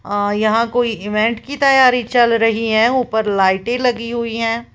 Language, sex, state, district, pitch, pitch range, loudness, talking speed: Hindi, female, Uttar Pradesh, Lalitpur, 230 Hz, 220-245 Hz, -16 LUFS, 175 wpm